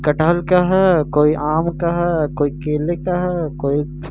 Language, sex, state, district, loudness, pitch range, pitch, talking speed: Hindi, male, Madhya Pradesh, Umaria, -17 LUFS, 150-175 Hz, 160 Hz, 175 wpm